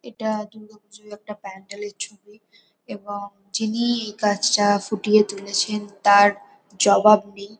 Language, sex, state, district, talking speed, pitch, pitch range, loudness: Bengali, female, West Bengal, North 24 Parganas, 125 wpm, 210 Hz, 205-215 Hz, -20 LUFS